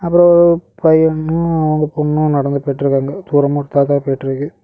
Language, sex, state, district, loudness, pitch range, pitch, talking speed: Tamil, male, Tamil Nadu, Kanyakumari, -14 LUFS, 140-165 Hz, 150 Hz, 115 wpm